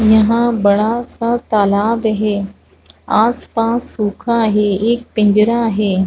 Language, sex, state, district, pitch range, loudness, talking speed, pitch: Hindi, female, Chhattisgarh, Rajnandgaon, 210-235 Hz, -15 LUFS, 110 wpm, 220 Hz